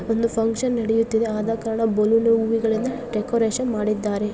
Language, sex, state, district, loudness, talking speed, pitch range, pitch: Kannada, female, Karnataka, Chamarajanagar, -22 LUFS, 110 wpm, 220-230 Hz, 225 Hz